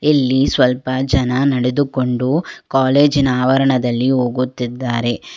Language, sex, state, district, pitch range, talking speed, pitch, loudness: Kannada, female, Karnataka, Bangalore, 125-135 Hz, 80 wpm, 130 Hz, -16 LUFS